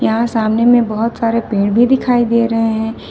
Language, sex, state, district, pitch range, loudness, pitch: Hindi, female, Jharkhand, Ranchi, 225-235 Hz, -14 LUFS, 230 Hz